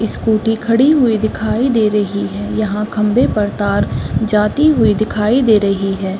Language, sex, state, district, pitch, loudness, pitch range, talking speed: Hindi, female, Uttar Pradesh, Hamirpur, 215 Hz, -15 LUFS, 205-225 Hz, 165 wpm